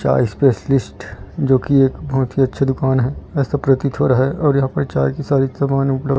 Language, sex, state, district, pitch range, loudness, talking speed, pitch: Hindi, male, Chhattisgarh, Raipur, 130-140 Hz, -17 LUFS, 225 wpm, 135 Hz